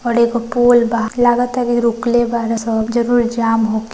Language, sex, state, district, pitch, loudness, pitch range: Hindi, female, Bihar, East Champaran, 235 Hz, -15 LUFS, 230-240 Hz